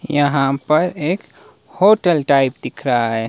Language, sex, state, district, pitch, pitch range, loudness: Hindi, male, Himachal Pradesh, Shimla, 145 Hz, 135-175 Hz, -17 LUFS